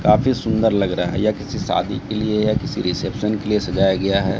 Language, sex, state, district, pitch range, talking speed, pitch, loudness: Hindi, male, Bihar, Katihar, 100-110 Hz, 230 wpm, 105 Hz, -20 LUFS